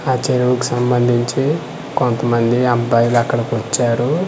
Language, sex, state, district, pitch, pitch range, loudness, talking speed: Telugu, male, Andhra Pradesh, Manyam, 120 Hz, 120-125 Hz, -16 LUFS, 110 wpm